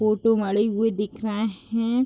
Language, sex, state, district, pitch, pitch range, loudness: Hindi, female, Jharkhand, Jamtara, 220 Hz, 210-225 Hz, -24 LUFS